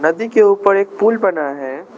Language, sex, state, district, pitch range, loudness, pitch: Hindi, male, Arunachal Pradesh, Lower Dibang Valley, 155-210 Hz, -14 LUFS, 200 Hz